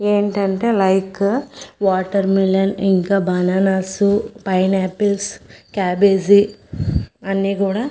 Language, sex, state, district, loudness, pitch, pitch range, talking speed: Telugu, female, Andhra Pradesh, Manyam, -17 LUFS, 195 Hz, 190-205 Hz, 75 wpm